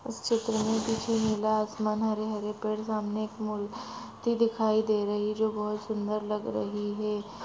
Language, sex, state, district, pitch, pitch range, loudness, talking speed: Hindi, female, Maharashtra, Aurangabad, 215 Hz, 210-220 Hz, -30 LUFS, 170 wpm